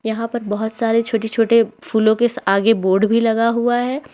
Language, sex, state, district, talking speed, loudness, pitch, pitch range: Hindi, female, Jharkhand, Ranchi, 200 wpm, -17 LUFS, 225 Hz, 220-235 Hz